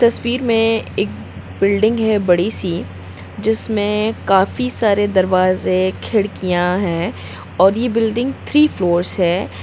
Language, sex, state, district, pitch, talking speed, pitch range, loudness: Hindi, female, Bihar, Gopalganj, 195 Hz, 120 wpm, 175-225 Hz, -17 LUFS